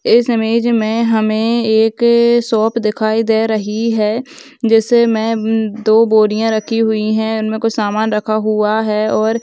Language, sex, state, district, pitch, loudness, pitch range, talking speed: Hindi, female, Rajasthan, Churu, 220 Hz, -14 LUFS, 215-230 Hz, 145 wpm